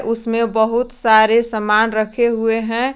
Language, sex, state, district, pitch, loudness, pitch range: Hindi, female, Jharkhand, Garhwa, 225 Hz, -16 LUFS, 220-235 Hz